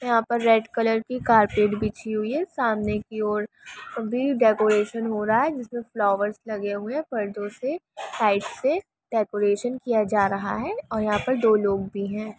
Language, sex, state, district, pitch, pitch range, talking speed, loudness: Hindi, female, Bihar, Sitamarhi, 220 Hz, 210-235 Hz, 185 wpm, -24 LUFS